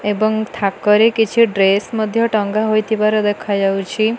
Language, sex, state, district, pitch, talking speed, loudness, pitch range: Odia, female, Odisha, Malkangiri, 215 Hz, 130 wpm, -16 LUFS, 205-220 Hz